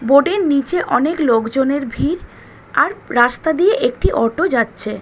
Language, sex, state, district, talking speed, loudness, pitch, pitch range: Bengali, female, West Bengal, North 24 Parganas, 145 wpm, -16 LUFS, 300 Hz, 260-355 Hz